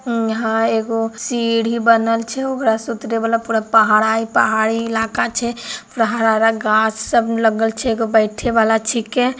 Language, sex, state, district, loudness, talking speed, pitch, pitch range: Maithili, female, Bihar, Begusarai, -17 LUFS, 145 wpm, 225 Hz, 220-230 Hz